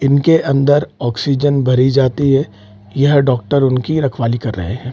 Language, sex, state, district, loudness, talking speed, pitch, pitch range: Hindi, male, Bihar, Saran, -14 LUFS, 160 wpm, 135 Hz, 120-140 Hz